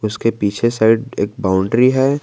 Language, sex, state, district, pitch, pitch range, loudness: Hindi, male, Jharkhand, Garhwa, 115 Hz, 105-125 Hz, -16 LUFS